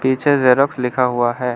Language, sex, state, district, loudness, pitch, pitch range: Hindi, male, Arunachal Pradesh, Lower Dibang Valley, -16 LUFS, 125 Hz, 125-130 Hz